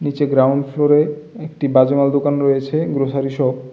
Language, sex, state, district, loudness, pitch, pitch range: Bengali, male, Tripura, West Tripura, -17 LUFS, 140 Hz, 135-145 Hz